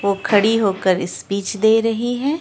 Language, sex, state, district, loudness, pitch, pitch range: Hindi, female, Bihar, Araria, -18 LUFS, 210 Hz, 200-225 Hz